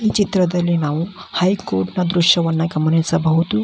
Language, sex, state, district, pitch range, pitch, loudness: Kannada, male, Karnataka, Belgaum, 160-180 Hz, 170 Hz, -18 LUFS